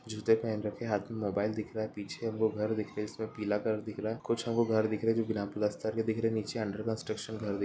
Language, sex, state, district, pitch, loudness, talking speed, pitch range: Hindi, male, Jharkhand, Sahebganj, 110 Hz, -33 LUFS, 280 wpm, 105-115 Hz